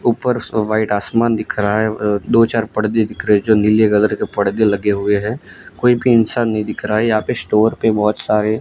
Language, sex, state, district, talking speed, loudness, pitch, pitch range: Hindi, male, Gujarat, Gandhinagar, 245 wpm, -16 LUFS, 110 Hz, 105-115 Hz